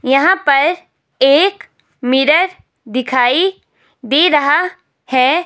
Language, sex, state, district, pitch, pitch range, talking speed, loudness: Hindi, female, Himachal Pradesh, Shimla, 285 Hz, 260-350 Hz, 90 wpm, -13 LUFS